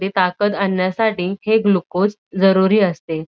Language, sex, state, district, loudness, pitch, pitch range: Marathi, female, Maharashtra, Dhule, -17 LUFS, 195 Hz, 185-205 Hz